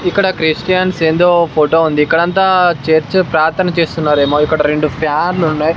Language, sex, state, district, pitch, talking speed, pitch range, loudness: Telugu, male, Andhra Pradesh, Sri Satya Sai, 165 Hz, 155 wpm, 155-180 Hz, -13 LUFS